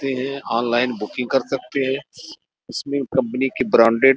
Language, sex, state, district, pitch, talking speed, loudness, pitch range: Hindi, male, Uttar Pradesh, Gorakhpur, 130 Hz, 160 wpm, -21 LUFS, 120-135 Hz